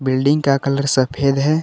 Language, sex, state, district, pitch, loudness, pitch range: Hindi, male, Jharkhand, Palamu, 140 Hz, -17 LUFS, 135-140 Hz